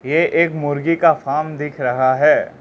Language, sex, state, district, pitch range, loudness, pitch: Hindi, male, Arunachal Pradesh, Lower Dibang Valley, 145-165 Hz, -17 LUFS, 155 Hz